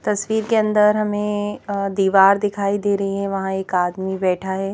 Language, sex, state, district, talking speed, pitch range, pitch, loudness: Hindi, female, Madhya Pradesh, Bhopal, 190 wpm, 190-210 Hz, 200 Hz, -19 LUFS